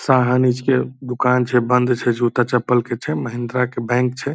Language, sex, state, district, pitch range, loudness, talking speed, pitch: Hindi, male, Bihar, Purnia, 120-125 Hz, -18 LUFS, 180 wpm, 125 Hz